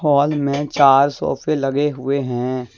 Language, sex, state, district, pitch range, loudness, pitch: Hindi, male, Jharkhand, Deoghar, 135-145 Hz, -18 LUFS, 140 Hz